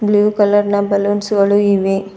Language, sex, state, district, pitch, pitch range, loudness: Kannada, female, Karnataka, Bidar, 205 Hz, 200-205 Hz, -14 LUFS